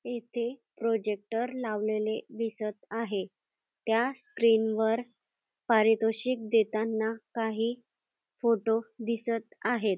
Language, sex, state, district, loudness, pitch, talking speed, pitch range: Marathi, female, Maharashtra, Dhule, -30 LUFS, 225 Hz, 85 wpm, 220-235 Hz